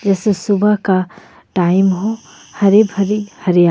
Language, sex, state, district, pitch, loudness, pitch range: Hindi, female, Jharkhand, Ranchi, 200 Hz, -15 LUFS, 185-210 Hz